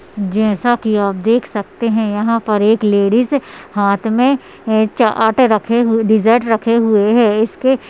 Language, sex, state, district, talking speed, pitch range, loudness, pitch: Hindi, female, Uttarakhand, Tehri Garhwal, 160 wpm, 210-235 Hz, -14 LUFS, 220 Hz